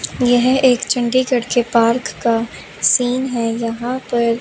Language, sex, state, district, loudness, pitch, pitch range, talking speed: Hindi, female, Chandigarh, Chandigarh, -16 LUFS, 245 Hz, 230-255 Hz, 135 wpm